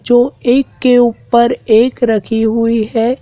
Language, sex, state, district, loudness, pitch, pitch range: Hindi, male, Madhya Pradesh, Dhar, -12 LUFS, 235 Hz, 225-245 Hz